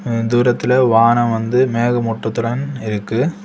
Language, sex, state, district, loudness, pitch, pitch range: Tamil, male, Tamil Nadu, Kanyakumari, -16 LUFS, 120 Hz, 115-125 Hz